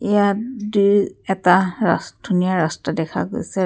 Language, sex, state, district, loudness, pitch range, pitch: Assamese, female, Assam, Kamrup Metropolitan, -19 LUFS, 180-210 Hz, 195 Hz